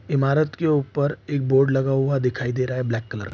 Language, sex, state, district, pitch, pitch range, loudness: Hindi, male, Bihar, Saharsa, 135 Hz, 125-145 Hz, -22 LUFS